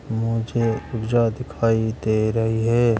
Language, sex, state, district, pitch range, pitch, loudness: Hindi, male, Uttar Pradesh, Hamirpur, 110-115 Hz, 115 Hz, -22 LUFS